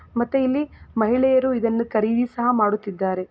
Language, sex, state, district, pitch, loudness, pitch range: Kannada, female, Karnataka, Gulbarga, 235 Hz, -21 LUFS, 215-260 Hz